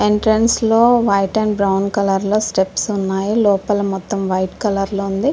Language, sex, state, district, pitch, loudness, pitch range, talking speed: Telugu, female, Andhra Pradesh, Visakhapatnam, 200 Hz, -16 LUFS, 195-220 Hz, 170 wpm